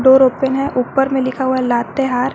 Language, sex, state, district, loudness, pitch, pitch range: Hindi, female, Jharkhand, Garhwa, -16 LUFS, 260 Hz, 255-270 Hz